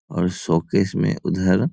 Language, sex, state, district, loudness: Hindi, male, Bihar, Sitamarhi, -21 LUFS